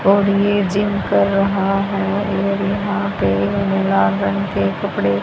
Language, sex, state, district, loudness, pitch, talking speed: Hindi, female, Haryana, Jhajjar, -17 LUFS, 195 Hz, 150 wpm